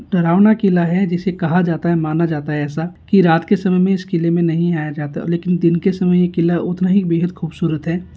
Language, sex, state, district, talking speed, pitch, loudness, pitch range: Hindi, male, Rajasthan, Nagaur, 240 wpm, 170 Hz, -16 LUFS, 165-185 Hz